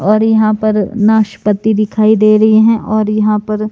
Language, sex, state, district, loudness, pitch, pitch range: Hindi, male, Himachal Pradesh, Shimla, -11 LUFS, 215 Hz, 210-220 Hz